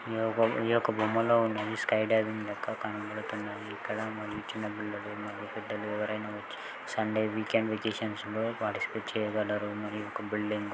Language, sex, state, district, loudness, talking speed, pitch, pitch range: Telugu, male, Telangana, Nalgonda, -32 LUFS, 145 wpm, 110 Hz, 105-110 Hz